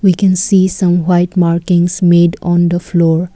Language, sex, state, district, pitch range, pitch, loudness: English, female, Assam, Kamrup Metropolitan, 175-185 Hz, 175 Hz, -12 LUFS